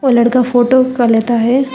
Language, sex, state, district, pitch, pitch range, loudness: Hindi, female, Telangana, Hyderabad, 245 Hz, 235-255 Hz, -12 LUFS